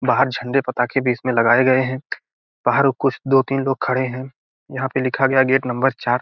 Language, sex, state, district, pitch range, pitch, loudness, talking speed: Hindi, male, Bihar, Gopalganj, 125-135 Hz, 130 Hz, -19 LUFS, 220 wpm